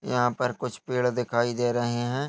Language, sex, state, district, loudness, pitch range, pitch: Hindi, male, Chhattisgarh, Jashpur, -27 LUFS, 120-125 Hz, 120 Hz